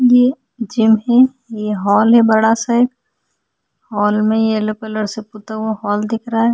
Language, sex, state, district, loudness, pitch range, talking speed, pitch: Hindi, female, Chhattisgarh, Sukma, -15 LUFS, 215-240 Hz, 185 wpm, 220 Hz